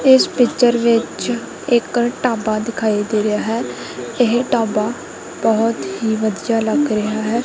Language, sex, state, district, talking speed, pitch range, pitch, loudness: Punjabi, female, Punjab, Kapurthala, 135 wpm, 220-245 Hz, 230 Hz, -18 LUFS